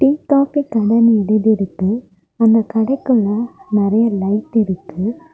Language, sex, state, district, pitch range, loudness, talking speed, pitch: Tamil, female, Tamil Nadu, Kanyakumari, 205-250 Hz, -16 LUFS, 100 wpm, 220 Hz